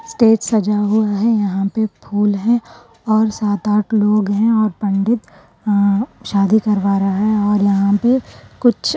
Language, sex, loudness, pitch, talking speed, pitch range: Urdu, female, -16 LUFS, 210 Hz, 165 wpm, 205-225 Hz